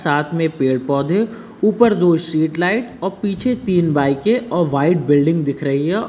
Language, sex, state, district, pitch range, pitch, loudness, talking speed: Hindi, male, Uttar Pradesh, Lucknow, 145-210 Hz, 170 Hz, -17 LUFS, 185 wpm